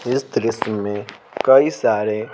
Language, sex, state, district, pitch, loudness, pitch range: Hindi, male, Bihar, Patna, 110 Hz, -18 LUFS, 105-130 Hz